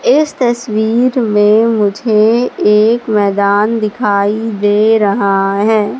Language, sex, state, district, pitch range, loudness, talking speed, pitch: Hindi, female, Madhya Pradesh, Katni, 205-230 Hz, -12 LUFS, 100 wpm, 215 Hz